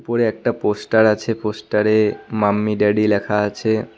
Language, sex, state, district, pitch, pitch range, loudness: Bengali, male, West Bengal, Cooch Behar, 105 Hz, 105-110 Hz, -18 LUFS